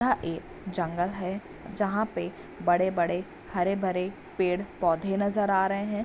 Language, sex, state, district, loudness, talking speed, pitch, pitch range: Hindi, female, Bihar, Bhagalpur, -29 LUFS, 130 wpm, 190 Hz, 175-200 Hz